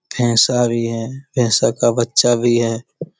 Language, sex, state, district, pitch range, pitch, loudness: Hindi, male, Bihar, Jamui, 115-120 Hz, 120 Hz, -16 LUFS